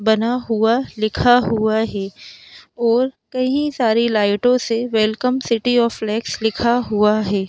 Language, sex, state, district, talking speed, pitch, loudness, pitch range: Hindi, male, Madhya Pradesh, Bhopal, 135 wpm, 230 Hz, -18 LUFS, 220-245 Hz